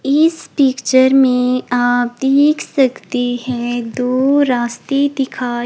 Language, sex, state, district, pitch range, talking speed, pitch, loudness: Hindi, female, Himachal Pradesh, Shimla, 245-275 Hz, 105 wpm, 255 Hz, -15 LUFS